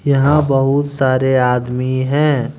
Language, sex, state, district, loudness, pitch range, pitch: Hindi, male, Jharkhand, Deoghar, -15 LUFS, 130-145 Hz, 135 Hz